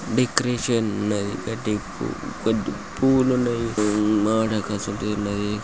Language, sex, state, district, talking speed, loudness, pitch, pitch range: Telugu, male, Andhra Pradesh, Guntur, 85 wpm, -23 LUFS, 105 Hz, 105-120 Hz